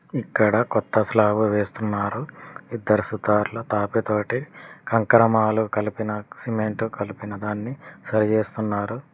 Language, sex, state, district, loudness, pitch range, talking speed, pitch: Telugu, male, Telangana, Mahabubabad, -23 LUFS, 105-115 Hz, 100 wpm, 110 Hz